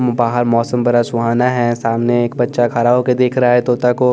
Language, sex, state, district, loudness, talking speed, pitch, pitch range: Hindi, male, Bihar, West Champaran, -15 LUFS, 220 wpm, 120 Hz, 120-125 Hz